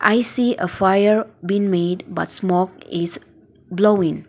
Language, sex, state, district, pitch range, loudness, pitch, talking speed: English, female, Nagaland, Dimapur, 175-210 Hz, -19 LUFS, 190 Hz, 140 wpm